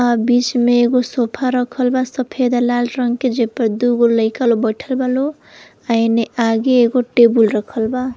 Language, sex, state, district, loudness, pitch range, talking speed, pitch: Bhojpuri, female, Uttar Pradesh, Varanasi, -16 LUFS, 230-250 Hz, 190 wpm, 245 Hz